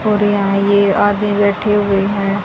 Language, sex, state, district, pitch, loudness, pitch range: Hindi, female, Haryana, Jhajjar, 205 Hz, -14 LUFS, 200-205 Hz